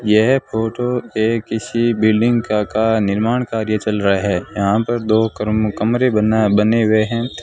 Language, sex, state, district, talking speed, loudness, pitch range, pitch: Hindi, male, Rajasthan, Bikaner, 170 wpm, -17 LUFS, 105-115 Hz, 110 Hz